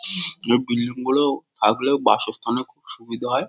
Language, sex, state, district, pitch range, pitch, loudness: Bengali, male, West Bengal, Kolkata, 120-140 Hz, 125 Hz, -20 LUFS